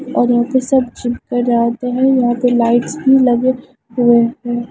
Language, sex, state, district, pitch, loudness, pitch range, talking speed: Hindi, female, Himachal Pradesh, Shimla, 245 Hz, -14 LUFS, 240-255 Hz, 180 wpm